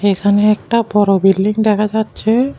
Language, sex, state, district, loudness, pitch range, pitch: Bengali, male, Tripura, West Tripura, -14 LUFS, 200-220 Hz, 210 Hz